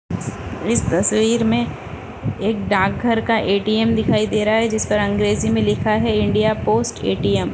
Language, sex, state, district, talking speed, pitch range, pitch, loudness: Hindi, female, Uttar Pradesh, Etah, 165 wpm, 205-225 Hz, 215 Hz, -18 LUFS